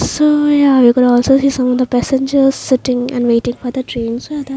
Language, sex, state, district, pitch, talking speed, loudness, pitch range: English, female, Maharashtra, Mumbai Suburban, 255 Hz, 225 wpm, -13 LUFS, 245-275 Hz